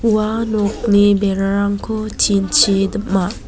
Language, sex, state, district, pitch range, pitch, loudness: Garo, female, Meghalaya, West Garo Hills, 195-215 Hz, 205 Hz, -16 LUFS